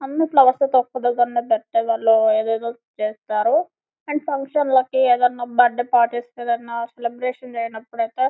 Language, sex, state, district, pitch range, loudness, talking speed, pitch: Telugu, female, Telangana, Karimnagar, 235-275 Hz, -20 LUFS, 115 wpm, 245 Hz